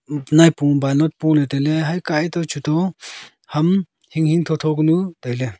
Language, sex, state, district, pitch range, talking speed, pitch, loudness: Wancho, male, Arunachal Pradesh, Longding, 145-165 Hz, 170 wpm, 155 Hz, -18 LUFS